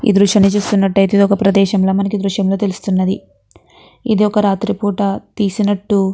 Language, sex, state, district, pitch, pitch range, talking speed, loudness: Telugu, female, Andhra Pradesh, Guntur, 200 Hz, 195-205 Hz, 165 wpm, -15 LUFS